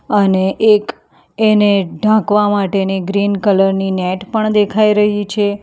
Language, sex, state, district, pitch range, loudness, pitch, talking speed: Gujarati, female, Gujarat, Valsad, 195-210 Hz, -14 LUFS, 205 Hz, 140 wpm